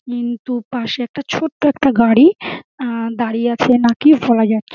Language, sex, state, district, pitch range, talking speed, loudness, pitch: Bengali, female, West Bengal, Dakshin Dinajpur, 235-270 Hz, 165 wpm, -15 LUFS, 240 Hz